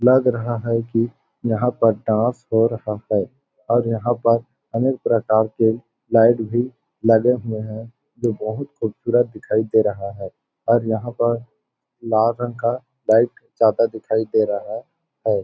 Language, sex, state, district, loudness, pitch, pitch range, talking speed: Hindi, male, Chhattisgarh, Balrampur, -20 LUFS, 115 Hz, 110-120 Hz, 155 wpm